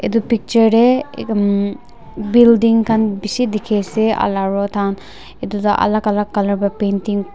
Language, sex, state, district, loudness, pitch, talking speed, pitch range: Nagamese, female, Nagaland, Dimapur, -16 LUFS, 210 Hz, 165 wpm, 200-230 Hz